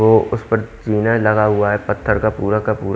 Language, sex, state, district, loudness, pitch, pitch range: Hindi, male, Haryana, Jhajjar, -17 LUFS, 110 Hz, 105-110 Hz